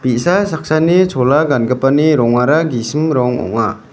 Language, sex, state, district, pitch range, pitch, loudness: Garo, male, Meghalaya, West Garo Hills, 125-155 Hz, 140 Hz, -14 LUFS